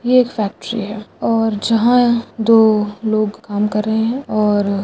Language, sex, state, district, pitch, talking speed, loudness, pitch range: Hindi, female, Rajasthan, Churu, 220 Hz, 185 wpm, -16 LUFS, 210-230 Hz